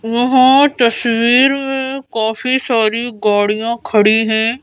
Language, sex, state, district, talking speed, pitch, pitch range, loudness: Hindi, female, Madhya Pradesh, Bhopal, 105 wpm, 235 Hz, 220-260 Hz, -13 LUFS